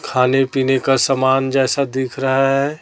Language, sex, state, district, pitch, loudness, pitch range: Hindi, female, Chhattisgarh, Raipur, 135 Hz, -16 LUFS, 130-135 Hz